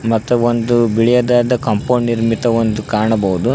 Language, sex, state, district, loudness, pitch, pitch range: Kannada, male, Karnataka, Koppal, -15 LUFS, 115 Hz, 110-120 Hz